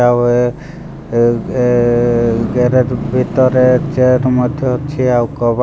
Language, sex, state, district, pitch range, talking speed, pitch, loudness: Odia, male, Odisha, Malkangiri, 120-130 Hz, 115 wpm, 125 Hz, -13 LUFS